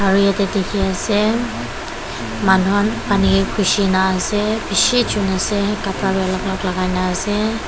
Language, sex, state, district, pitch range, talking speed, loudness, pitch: Nagamese, female, Nagaland, Dimapur, 190-210 Hz, 125 wpm, -18 LUFS, 195 Hz